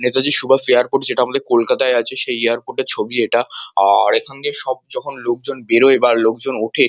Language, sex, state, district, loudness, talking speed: Bengali, male, West Bengal, Kolkata, -15 LUFS, 190 wpm